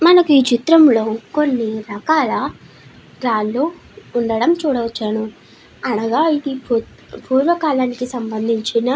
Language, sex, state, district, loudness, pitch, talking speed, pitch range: Telugu, female, Andhra Pradesh, Srikakulam, -17 LUFS, 245 Hz, 115 wpm, 225-295 Hz